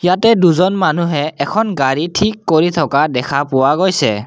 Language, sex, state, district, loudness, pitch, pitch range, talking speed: Assamese, male, Assam, Kamrup Metropolitan, -14 LUFS, 165 Hz, 140-185 Hz, 155 wpm